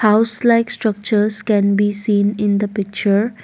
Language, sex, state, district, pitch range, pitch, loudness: English, female, Assam, Kamrup Metropolitan, 205-220 Hz, 210 Hz, -17 LUFS